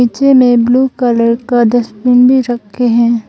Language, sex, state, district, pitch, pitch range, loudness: Hindi, female, Arunachal Pradesh, Longding, 245 Hz, 235-250 Hz, -10 LUFS